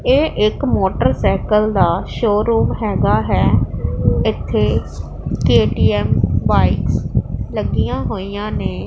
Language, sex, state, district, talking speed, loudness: Punjabi, female, Punjab, Pathankot, 90 wpm, -17 LUFS